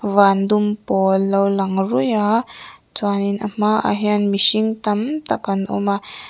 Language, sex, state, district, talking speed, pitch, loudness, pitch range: Mizo, female, Mizoram, Aizawl, 160 wpm, 205 Hz, -18 LUFS, 200-215 Hz